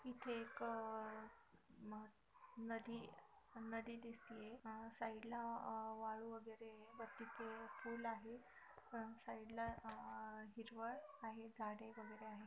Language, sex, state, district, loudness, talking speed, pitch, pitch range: Marathi, female, Maharashtra, Chandrapur, -52 LUFS, 110 wpm, 225 Hz, 220-230 Hz